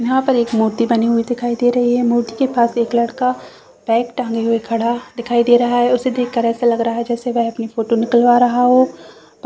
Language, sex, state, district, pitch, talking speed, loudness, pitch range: Hindi, female, Uttar Pradesh, Varanasi, 240 Hz, 220 wpm, -16 LUFS, 230-245 Hz